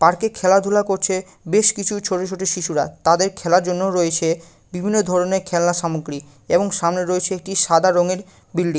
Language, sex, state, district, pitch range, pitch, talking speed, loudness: Bengali, male, West Bengal, Malda, 170-190 Hz, 180 Hz, 165 wpm, -19 LUFS